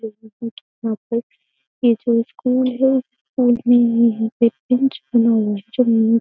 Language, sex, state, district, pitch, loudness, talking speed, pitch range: Hindi, female, Uttar Pradesh, Jyotiba Phule Nagar, 235 Hz, -18 LUFS, 145 wpm, 225-250 Hz